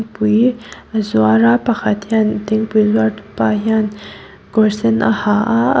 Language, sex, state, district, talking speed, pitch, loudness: Mizo, female, Mizoram, Aizawl, 165 wpm, 215 Hz, -15 LUFS